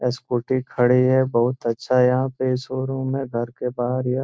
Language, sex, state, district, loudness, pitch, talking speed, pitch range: Hindi, male, Bihar, Gopalganj, -21 LUFS, 125 Hz, 200 wpm, 125-130 Hz